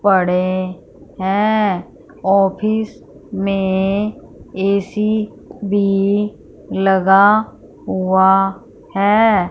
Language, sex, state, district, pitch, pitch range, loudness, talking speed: Hindi, female, Punjab, Fazilka, 195 Hz, 190-210 Hz, -16 LUFS, 55 wpm